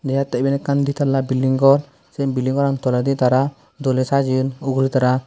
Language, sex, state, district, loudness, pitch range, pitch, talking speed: Chakma, male, Tripura, Dhalai, -19 LUFS, 130-140 Hz, 135 Hz, 170 wpm